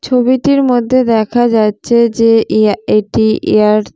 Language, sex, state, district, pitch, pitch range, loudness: Bengali, female, West Bengal, Jalpaiguri, 230 Hz, 215-245 Hz, -11 LUFS